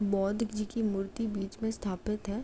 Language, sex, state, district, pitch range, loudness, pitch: Hindi, female, Uttar Pradesh, Jalaun, 195-220 Hz, -33 LUFS, 210 Hz